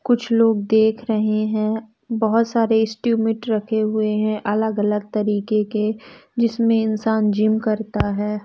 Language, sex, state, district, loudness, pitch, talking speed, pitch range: Hindi, female, Bihar, West Champaran, -20 LUFS, 220 Hz, 140 wpm, 215-225 Hz